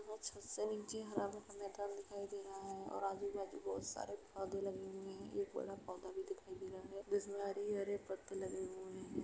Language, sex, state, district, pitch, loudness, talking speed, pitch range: Hindi, female, Uttar Pradesh, Jalaun, 200 Hz, -46 LUFS, 210 wpm, 195-210 Hz